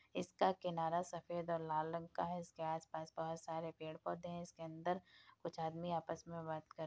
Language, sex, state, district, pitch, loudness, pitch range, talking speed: Hindi, female, Bihar, Madhepura, 165 Hz, -44 LUFS, 160-170 Hz, 200 wpm